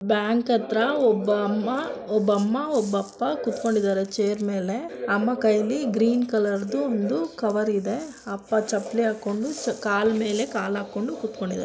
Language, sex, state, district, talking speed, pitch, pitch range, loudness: Kannada, female, Karnataka, Dakshina Kannada, 145 wpm, 215 Hz, 205-230 Hz, -24 LUFS